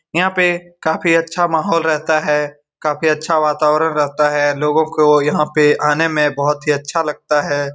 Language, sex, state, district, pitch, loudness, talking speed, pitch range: Hindi, male, Bihar, Saran, 150 Hz, -16 LUFS, 180 wpm, 150-160 Hz